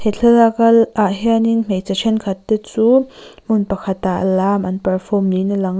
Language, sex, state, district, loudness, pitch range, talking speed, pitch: Mizo, female, Mizoram, Aizawl, -16 LUFS, 190-225 Hz, 175 wpm, 205 Hz